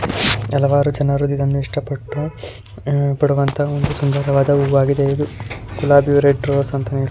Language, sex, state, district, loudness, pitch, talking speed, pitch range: Kannada, female, Karnataka, Dakshina Kannada, -17 LUFS, 140 Hz, 120 wpm, 135-145 Hz